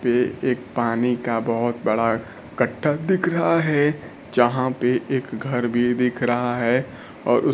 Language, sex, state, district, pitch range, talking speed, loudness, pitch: Hindi, male, Bihar, Kaimur, 120-130 Hz, 160 wpm, -22 LUFS, 125 Hz